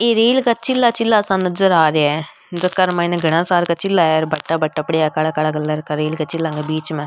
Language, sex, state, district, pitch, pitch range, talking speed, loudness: Rajasthani, female, Rajasthan, Nagaur, 165 Hz, 155-190 Hz, 255 wpm, -16 LUFS